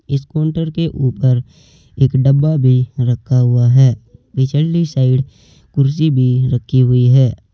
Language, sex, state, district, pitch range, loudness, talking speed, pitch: Hindi, male, Uttar Pradesh, Saharanpur, 125-145 Hz, -14 LUFS, 125 wpm, 130 Hz